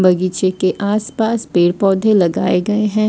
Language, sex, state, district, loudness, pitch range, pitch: Hindi, female, Odisha, Sambalpur, -16 LUFS, 185-215 Hz, 195 Hz